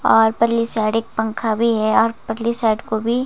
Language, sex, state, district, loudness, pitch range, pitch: Hindi, male, Himachal Pradesh, Shimla, -18 LUFS, 220-230 Hz, 225 Hz